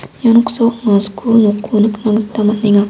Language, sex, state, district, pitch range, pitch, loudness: Garo, female, Meghalaya, West Garo Hills, 210-230 Hz, 215 Hz, -13 LUFS